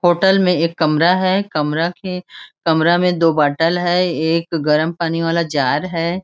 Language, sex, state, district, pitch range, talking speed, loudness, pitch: Hindi, female, Chhattisgarh, Raigarh, 160-180 Hz, 175 wpm, -16 LUFS, 170 Hz